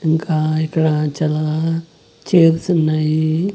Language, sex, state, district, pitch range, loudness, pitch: Telugu, male, Andhra Pradesh, Annamaya, 155-165 Hz, -17 LUFS, 160 Hz